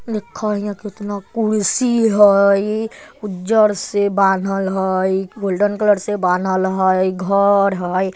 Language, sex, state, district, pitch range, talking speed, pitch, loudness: Bajjika, male, Bihar, Vaishali, 190-210 Hz, 120 wpm, 200 Hz, -17 LUFS